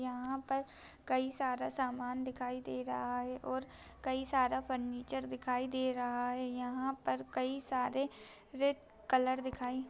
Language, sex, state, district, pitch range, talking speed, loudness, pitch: Hindi, female, Chhattisgarh, Bilaspur, 250-265 Hz, 150 wpm, -37 LUFS, 255 Hz